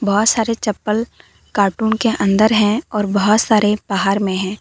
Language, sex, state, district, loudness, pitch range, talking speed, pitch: Hindi, female, Jharkhand, Deoghar, -16 LUFS, 200-220 Hz, 170 wpm, 210 Hz